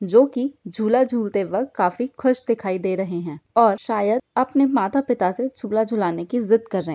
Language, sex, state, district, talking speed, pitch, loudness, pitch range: Hindi, female, Bihar, Jahanabad, 205 wpm, 225 Hz, -21 LUFS, 190-255 Hz